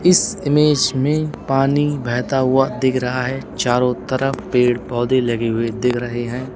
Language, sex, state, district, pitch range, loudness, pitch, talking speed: Hindi, male, Uttar Pradesh, Lalitpur, 120-135 Hz, -18 LUFS, 130 Hz, 165 wpm